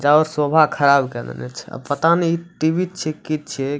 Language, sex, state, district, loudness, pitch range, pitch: Maithili, male, Bihar, Supaul, -19 LUFS, 140-160 Hz, 150 Hz